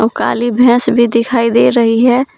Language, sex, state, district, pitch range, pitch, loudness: Hindi, female, Jharkhand, Palamu, 230-245 Hz, 240 Hz, -11 LUFS